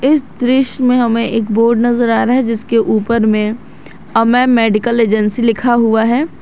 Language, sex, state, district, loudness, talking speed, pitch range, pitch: Hindi, female, Jharkhand, Garhwa, -13 LUFS, 175 wpm, 225-245 Hz, 235 Hz